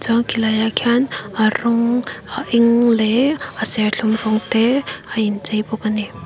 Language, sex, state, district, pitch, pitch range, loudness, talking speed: Mizo, female, Mizoram, Aizawl, 225 Hz, 215-235 Hz, -18 LUFS, 165 wpm